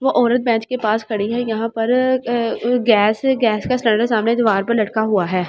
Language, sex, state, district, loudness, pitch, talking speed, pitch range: Hindi, male, Delhi, New Delhi, -17 LUFS, 230 Hz, 210 wpm, 215-245 Hz